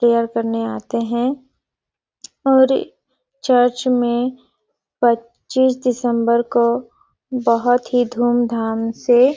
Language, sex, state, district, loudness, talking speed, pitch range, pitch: Hindi, female, Chhattisgarh, Sarguja, -18 LUFS, 90 wpm, 235-255 Hz, 240 Hz